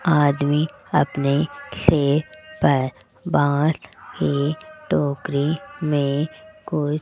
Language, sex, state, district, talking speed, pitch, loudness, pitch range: Hindi, male, Rajasthan, Jaipur, 85 wpm, 150 Hz, -22 LUFS, 140-160 Hz